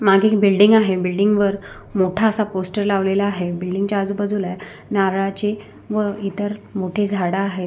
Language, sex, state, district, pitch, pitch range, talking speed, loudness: Marathi, female, Maharashtra, Sindhudurg, 200 Hz, 190-205 Hz, 155 wpm, -19 LUFS